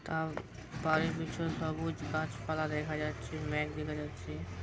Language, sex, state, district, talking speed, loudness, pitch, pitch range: Bengali, male, West Bengal, Jhargram, 130 wpm, -36 LUFS, 155 Hz, 145-160 Hz